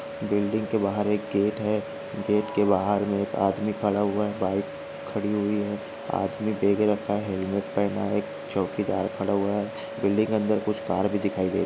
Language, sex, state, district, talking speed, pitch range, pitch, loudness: Hindi, male, Maharashtra, Aurangabad, 180 wpm, 100-105 Hz, 105 Hz, -26 LUFS